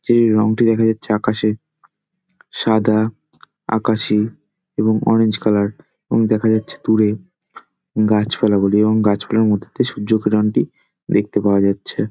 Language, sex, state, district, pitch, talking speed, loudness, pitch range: Bengali, male, West Bengal, Dakshin Dinajpur, 110 Hz, 140 wpm, -17 LUFS, 105-110 Hz